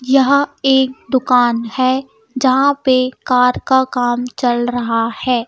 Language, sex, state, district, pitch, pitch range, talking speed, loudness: Hindi, female, Madhya Pradesh, Bhopal, 255 Hz, 245-265 Hz, 130 wpm, -15 LUFS